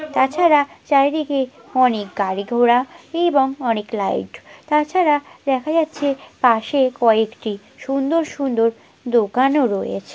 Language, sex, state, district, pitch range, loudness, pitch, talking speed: Bengali, male, West Bengal, Paschim Medinipur, 230-295 Hz, -19 LUFS, 265 Hz, 105 wpm